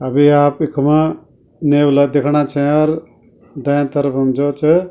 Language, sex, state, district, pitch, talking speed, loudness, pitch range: Garhwali, male, Uttarakhand, Tehri Garhwal, 145 Hz, 145 wpm, -15 LUFS, 140-150 Hz